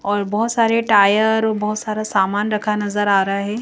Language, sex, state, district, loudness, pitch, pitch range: Hindi, female, Madhya Pradesh, Bhopal, -17 LUFS, 210 Hz, 205-220 Hz